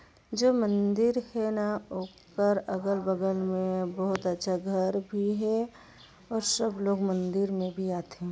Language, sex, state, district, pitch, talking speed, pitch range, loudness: Hindi, female, Chhattisgarh, Sarguja, 195 Hz, 145 wpm, 185-210 Hz, -29 LUFS